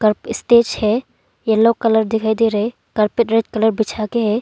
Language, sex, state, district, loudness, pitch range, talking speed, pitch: Hindi, female, Arunachal Pradesh, Longding, -17 LUFS, 215-230 Hz, 165 wpm, 220 Hz